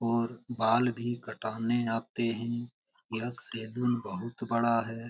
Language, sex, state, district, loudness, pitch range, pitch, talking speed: Hindi, male, Bihar, Jamui, -32 LUFS, 115-120 Hz, 115 Hz, 130 wpm